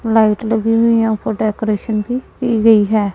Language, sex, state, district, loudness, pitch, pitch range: Hindi, female, Punjab, Pathankot, -15 LUFS, 220 Hz, 215-225 Hz